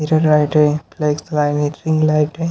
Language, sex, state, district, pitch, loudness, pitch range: Hindi, male, Haryana, Charkhi Dadri, 150 Hz, -16 LUFS, 150-155 Hz